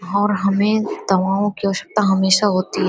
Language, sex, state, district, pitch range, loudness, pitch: Hindi, female, Uttar Pradesh, Hamirpur, 190-205 Hz, -18 LUFS, 195 Hz